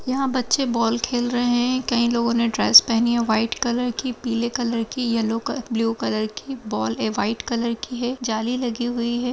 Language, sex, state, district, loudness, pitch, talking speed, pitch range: Hindi, female, Uttar Pradesh, Budaun, -22 LUFS, 235 Hz, 210 wpm, 230-245 Hz